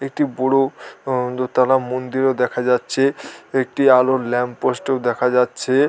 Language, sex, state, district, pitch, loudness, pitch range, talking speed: Bengali, male, West Bengal, Dakshin Dinajpur, 130 Hz, -19 LUFS, 125-135 Hz, 155 wpm